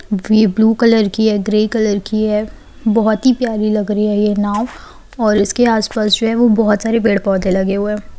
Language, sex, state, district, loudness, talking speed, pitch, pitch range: Hindi, female, Bihar, Saran, -14 LUFS, 210 wpm, 215 Hz, 210-225 Hz